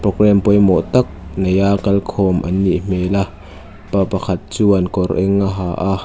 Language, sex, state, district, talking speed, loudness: Mizo, female, Mizoram, Aizawl, 180 wpm, -16 LUFS